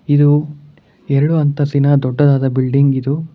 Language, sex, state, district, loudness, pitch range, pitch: Kannada, male, Karnataka, Bangalore, -14 LUFS, 140-145 Hz, 145 Hz